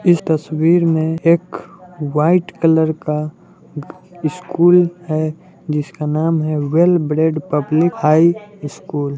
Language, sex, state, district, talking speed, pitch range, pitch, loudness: Hindi, male, Bihar, Muzaffarpur, 120 wpm, 155-175 Hz, 160 Hz, -16 LUFS